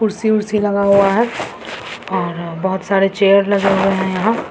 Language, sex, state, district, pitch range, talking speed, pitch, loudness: Hindi, female, Bihar, Samastipur, 190-210 Hz, 160 wpm, 200 Hz, -16 LUFS